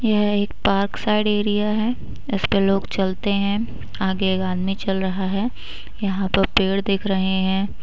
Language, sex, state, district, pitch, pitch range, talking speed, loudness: Hindi, female, Uttar Pradesh, Budaun, 195 Hz, 190-210 Hz, 175 wpm, -21 LUFS